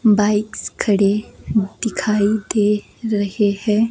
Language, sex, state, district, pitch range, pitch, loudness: Hindi, female, Himachal Pradesh, Shimla, 205-215 Hz, 210 Hz, -19 LUFS